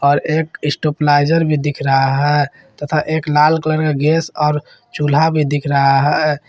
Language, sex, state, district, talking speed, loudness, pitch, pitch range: Hindi, male, Jharkhand, Garhwa, 175 wpm, -15 LUFS, 150 Hz, 145-155 Hz